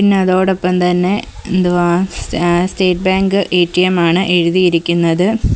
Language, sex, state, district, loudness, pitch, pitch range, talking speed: Malayalam, female, Kerala, Kollam, -14 LUFS, 180 Hz, 175-190 Hz, 120 wpm